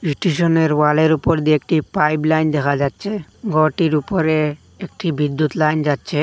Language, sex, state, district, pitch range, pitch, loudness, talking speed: Bengali, male, Assam, Hailakandi, 150-165 Hz, 155 Hz, -18 LUFS, 145 wpm